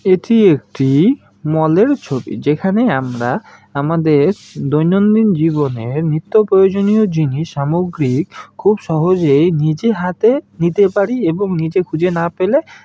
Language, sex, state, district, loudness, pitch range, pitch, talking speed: Bengali, male, West Bengal, Malda, -15 LUFS, 150-200 Hz, 170 Hz, 105 wpm